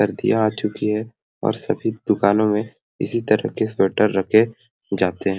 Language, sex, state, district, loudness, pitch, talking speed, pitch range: Sadri, male, Chhattisgarh, Jashpur, -21 LUFS, 105 Hz, 165 wpm, 100-110 Hz